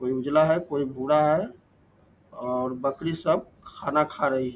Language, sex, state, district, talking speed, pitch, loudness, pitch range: Hindi, male, Bihar, Lakhisarai, 160 wpm, 140 Hz, -25 LUFS, 130-155 Hz